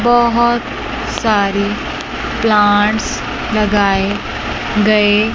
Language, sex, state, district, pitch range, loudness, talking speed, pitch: Hindi, male, Chandigarh, Chandigarh, 205-230 Hz, -15 LUFS, 55 wpm, 210 Hz